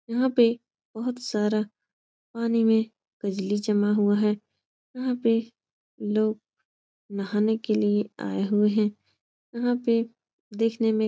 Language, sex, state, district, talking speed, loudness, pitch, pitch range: Hindi, female, Uttar Pradesh, Etah, 130 wpm, -25 LUFS, 220 Hz, 210-230 Hz